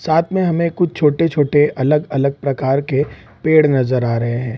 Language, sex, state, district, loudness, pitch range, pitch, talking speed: Hindi, male, Bihar, Saran, -16 LUFS, 130-160 Hz, 145 Hz, 170 wpm